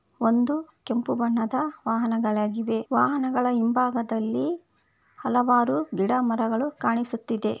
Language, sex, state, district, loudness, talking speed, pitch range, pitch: Kannada, female, Karnataka, Bellary, -25 LUFS, 70 wpm, 225-250 Hz, 235 Hz